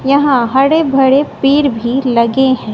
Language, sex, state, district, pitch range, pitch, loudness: Hindi, female, Bihar, West Champaran, 250-280 Hz, 265 Hz, -12 LUFS